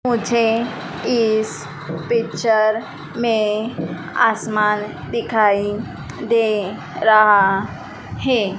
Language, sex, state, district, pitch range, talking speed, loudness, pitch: Hindi, female, Madhya Pradesh, Dhar, 200-230 Hz, 65 wpm, -18 LUFS, 215 Hz